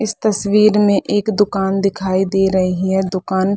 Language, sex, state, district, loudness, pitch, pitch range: Hindi, female, Bihar, Saharsa, -16 LUFS, 195 Hz, 190-205 Hz